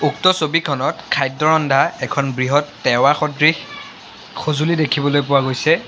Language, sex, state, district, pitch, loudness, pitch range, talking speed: Assamese, male, Assam, Sonitpur, 150 Hz, -17 LUFS, 140-160 Hz, 120 wpm